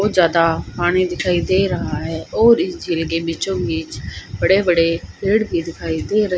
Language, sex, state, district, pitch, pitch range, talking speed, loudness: Hindi, female, Haryana, Rohtak, 175 Hz, 165-190 Hz, 190 wpm, -18 LUFS